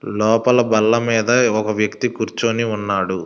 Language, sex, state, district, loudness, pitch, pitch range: Telugu, male, Telangana, Hyderabad, -17 LUFS, 110 Hz, 105-115 Hz